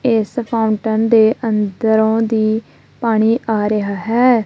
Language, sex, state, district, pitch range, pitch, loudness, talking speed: Punjabi, female, Punjab, Kapurthala, 215-230 Hz, 220 Hz, -16 LUFS, 120 wpm